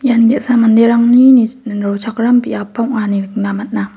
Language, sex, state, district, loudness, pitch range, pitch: Garo, female, Meghalaya, West Garo Hills, -12 LUFS, 210-240 Hz, 230 Hz